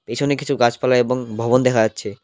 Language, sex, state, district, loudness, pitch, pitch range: Bengali, male, West Bengal, Cooch Behar, -18 LUFS, 125 Hz, 115-130 Hz